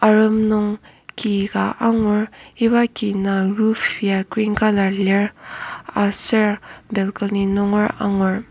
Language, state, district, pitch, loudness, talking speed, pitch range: Ao, Nagaland, Kohima, 210 Hz, -18 LUFS, 120 wpm, 200-215 Hz